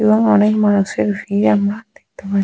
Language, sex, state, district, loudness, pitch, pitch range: Bengali, female, West Bengal, Jalpaiguri, -15 LUFS, 210 Hz, 200-215 Hz